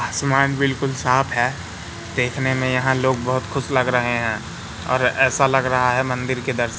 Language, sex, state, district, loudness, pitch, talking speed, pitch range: Hindi, male, Madhya Pradesh, Katni, -20 LUFS, 130 Hz, 185 wpm, 120-135 Hz